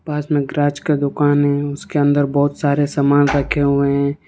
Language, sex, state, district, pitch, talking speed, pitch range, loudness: Hindi, male, Jharkhand, Ranchi, 145 Hz, 195 wpm, 140-145 Hz, -17 LUFS